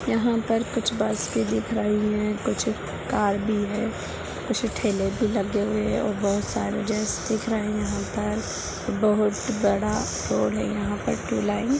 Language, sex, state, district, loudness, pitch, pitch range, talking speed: Hindi, female, Bihar, Purnia, -25 LUFS, 210 Hz, 200-220 Hz, 175 wpm